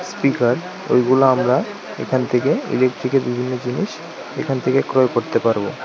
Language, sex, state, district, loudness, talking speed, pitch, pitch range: Bengali, male, Tripura, West Tripura, -19 LUFS, 135 wpm, 130 Hz, 125-135 Hz